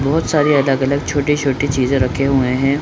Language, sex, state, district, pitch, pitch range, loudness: Hindi, male, Bihar, Supaul, 140 Hz, 135-145 Hz, -16 LUFS